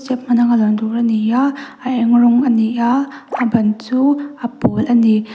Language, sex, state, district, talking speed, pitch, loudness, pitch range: Mizo, female, Mizoram, Aizawl, 200 wpm, 240 Hz, -15 LUFS, 230-255 Hz